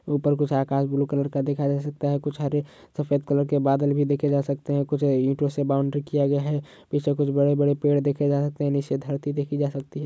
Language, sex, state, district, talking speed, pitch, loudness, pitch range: Hindi, male, Uttar Pradesh, Budaun, 255 wpm, 145 Hz, -24 LUFS, 140-145 Hz